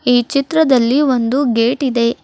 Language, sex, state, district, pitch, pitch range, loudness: Kannada, female, Karnataka, Bidar, 255 Hz, 240-275 Hz, -14 LUFS